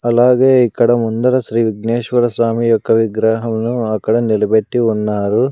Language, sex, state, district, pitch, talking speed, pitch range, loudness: Telugu, male, Andhra Pradesh, Sri Satya Sai, 115 Hz, 120 wpm, 110-120 Hz, -14 LUFS